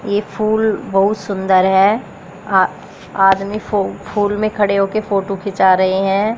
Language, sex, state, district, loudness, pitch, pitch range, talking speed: Hindi, female, Haryana, Jhajjar, -16 LUFS, 195 Hz, 190-210 Hz, 150 wpm